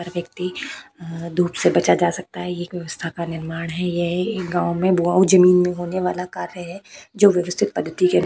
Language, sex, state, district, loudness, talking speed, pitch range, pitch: Hindi, female, Uttar Pradesh, Budaun, -20 LUFS, 210 wpm, 170-185 Hz, 180 Hz